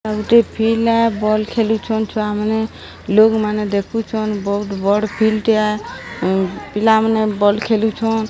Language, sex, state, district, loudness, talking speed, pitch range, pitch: Odia, female, Odisha, Sambalpur, -17 LUFS, 115 wpm, 210-220 Hz, 215 Hz